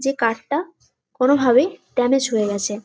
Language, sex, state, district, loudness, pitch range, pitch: Bengali, female, West Bengal, Jalpaiguri, -19 LUFS, 225-275 Hz, 255 Hz